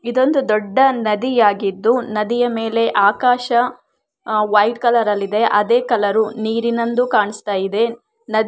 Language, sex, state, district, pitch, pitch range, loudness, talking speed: Kannada, female, Karnataka, Shimoga, 225 Hz, 210-240 Hz, -17 LUFS, 120 wpm